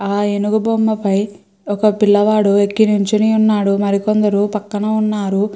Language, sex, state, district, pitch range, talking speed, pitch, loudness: Telugu, female, Andhra Pradesh, Srikakulam, 200-215 Hz, 130 wpm, 205 Hz, -15 LUFS